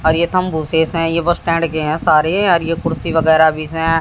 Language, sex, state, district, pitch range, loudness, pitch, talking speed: Hindi, female, Haryana, Jhajjar, 160-165 Hz, -15 LUFS, 165 Hz, 225 wpm